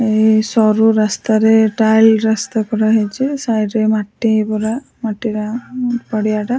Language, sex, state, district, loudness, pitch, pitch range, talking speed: Odia, female, Odisha, Sambalpur, -15 LUFS, 220 Hz, 215-225 Hz, 120 wpm